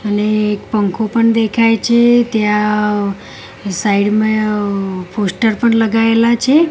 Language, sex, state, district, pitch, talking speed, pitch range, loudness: Gujarati, female, Gujarat, Gandhinagar, 215 Hz, 115 wpm, 205-230 Hz, -14 LUFS